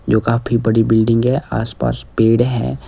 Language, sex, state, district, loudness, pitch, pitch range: Hindi, male, Himachal Pradesh, Shimla, -16 LUFS, 115 Hz, 110-120 Hz